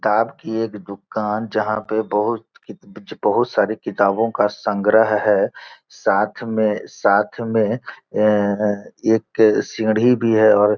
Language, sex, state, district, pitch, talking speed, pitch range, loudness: Hindi, male, Bihar, Gopalganj, 110 Hz, 135 wpm, 105-110 Hz, -19 LUFS